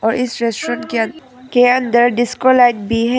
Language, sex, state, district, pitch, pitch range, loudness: Hindi, female, Arunachal Pradesh, Papum Pare, 240 Hz, 230-250 Hz, -15 LUFS